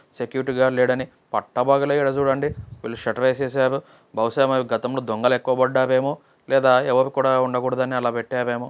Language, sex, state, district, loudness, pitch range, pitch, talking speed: Telugu, male, Andhra Pradesh, Guntur, -21 LUFS, 125-135 Hz, 130 Hz, 145 wpm